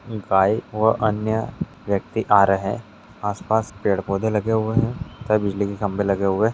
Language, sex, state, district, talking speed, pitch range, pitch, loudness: Hindi, male, Bihar, Darbhanga, 175 wpm, 100-110 Hz, 105 Hz, -22 LUFS